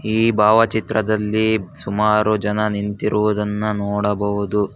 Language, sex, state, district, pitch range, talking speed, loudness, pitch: Kannada, male, Karnataka, Bangalore, 105-110 Hz, 75 wpm, -19 LUFS, 105 Hz